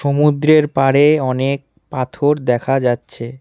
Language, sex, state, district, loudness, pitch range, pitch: Bengali, male, West Bengal, Cooch Behar, -15 LUFS, 130-150 Hz, 140 Hz